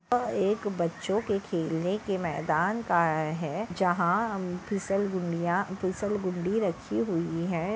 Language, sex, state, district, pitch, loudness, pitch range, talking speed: Hindi, female, Maharashtra, Dhule, 185 Hz, -29 LUFS, 170-200 Hz, 130 wpm